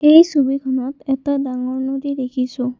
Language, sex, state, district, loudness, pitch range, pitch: Assamese, female, Assam, Kamrup Metropolitan, -19 LUFS, 255-280 Hz, 270 Hz